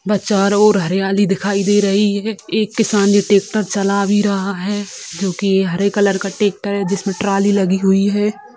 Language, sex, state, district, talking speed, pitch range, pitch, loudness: Hindi, female, Bihar, Sitamarhi, 195 wpm, 195-205 Hz, 200 Hz, -16 LUFS